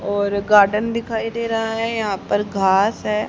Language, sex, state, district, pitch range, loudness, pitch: Hindi, female, Haryana, Rohtak, 200-225 Hz, -19 LUFS, 210 Hz